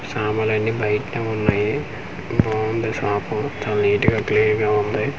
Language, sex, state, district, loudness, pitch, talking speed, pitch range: Telugu, male, Andhra Pradesh, Manyam, -21 LUFS, 110 Hz, 125 wpm, 105-110 Hz